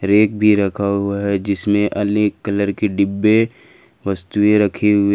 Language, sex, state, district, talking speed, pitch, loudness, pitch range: Hindi, male, Jharkhand, Ranchi, 150 wpm, 100 Hz, -17 LUFS, 100-105 Hz